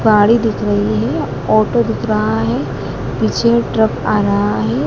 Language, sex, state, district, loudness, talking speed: Hindi, female, Madhya Pradesh, Dhar, -15 LUFS, 160 wpm